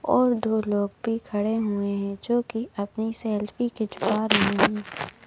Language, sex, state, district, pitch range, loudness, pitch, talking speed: Hindi, female, Madhya Pradesh, Bhopal, 205-225 Hz, -25 LUFS, 215 Hz, 160 wpm